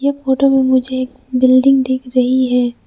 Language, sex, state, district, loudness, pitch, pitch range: Hindi, female, Arunachal Pradesh, Lower Dibang Valley, -14 LUFS, 260 Hz, 255-265 Hz